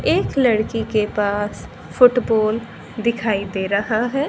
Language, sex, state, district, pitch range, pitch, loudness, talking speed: Hindi, female, Haryana, Jhajjar, 210-235 Hz, 220 Hz, -19 LUFS, 125 wpm